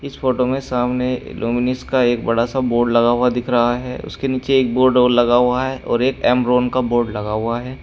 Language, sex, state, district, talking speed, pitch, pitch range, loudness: Hindi, male, Uttar Pradesh, Shamli, 235 wpm, 125 Hz, 120-130 Hz, -18 LUFS